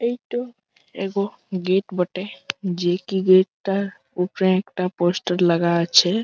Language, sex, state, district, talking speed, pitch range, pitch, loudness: Bengali, female, West Bengal, Malda, 135 wpm, 180-200 Hz, 185 Hz, -21 LUFS